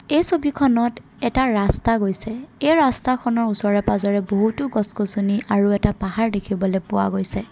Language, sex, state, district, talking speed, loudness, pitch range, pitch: Assamese, female, Assam, Kamrup Metropolitan, 135 wpm, -20 LUFS, 200-250 Hz, 215 Hz